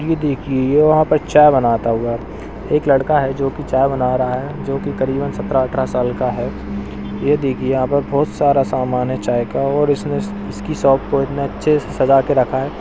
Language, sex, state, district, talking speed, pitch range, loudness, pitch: Hindi, male, Uttar Pradesh, Etah, 210 wpm, 120-140 Hz, -17 LUFS, 135 Hz